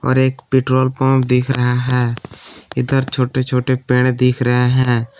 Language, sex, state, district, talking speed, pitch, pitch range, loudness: Hindi, male, Jharkhand, Palamu, 150 wpm, 125 Hz, 125-130 Hz, -16 LUFS